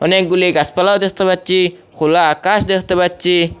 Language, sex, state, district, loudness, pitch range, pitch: Bengali, male, Assam, Hailakandi, -14 LUFS, 175-190 Hz, 180 Hz